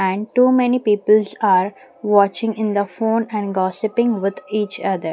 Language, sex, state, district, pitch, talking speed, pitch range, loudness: English, female, Punjab, Pathankot, 210 Hz, 165 wpm, 195-225 Hz, -18 LUFS